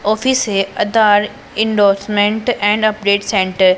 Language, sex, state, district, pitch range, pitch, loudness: Hindi, female, Punjab, Pathankot, 200-220 Hz, 205 Hz, -15 LUFS